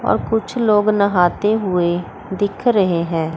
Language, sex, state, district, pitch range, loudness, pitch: Hindi, female, Chandigarh, Chandigarh, 175-215 Hz, -17 LUFS, 200 Hz